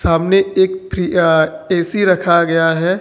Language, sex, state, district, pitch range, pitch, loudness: Hindi, male, Jharkhand, Ranchi, 165-195 Hz, 175 Hz, -14 LUFS